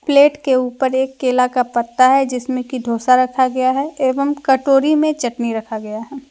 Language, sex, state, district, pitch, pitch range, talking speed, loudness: Hindi, female, Jharkhand, Deoghar, 260 Hz, 250-275 Hz, 200 wpm, -16 LUFS